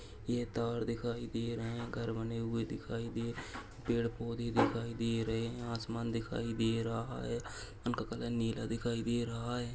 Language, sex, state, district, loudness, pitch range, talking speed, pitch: Hindi, male, Uttarakhand, Tehri Garhwal, -37 LUFS, 115-120 Hz, 180 wpm, 115 Hz